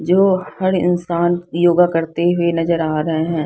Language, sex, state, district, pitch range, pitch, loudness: Hindi, female, Bihar, Patna, 165-175 Hz, 170 Hz, -17 LUFS